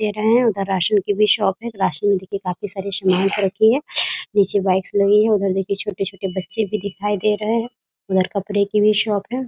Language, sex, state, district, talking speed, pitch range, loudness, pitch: Hindi, female, Bihar, Muzaffarpur, 215 wpm, 195-210 Hz, -18 LUFS, 200 Hz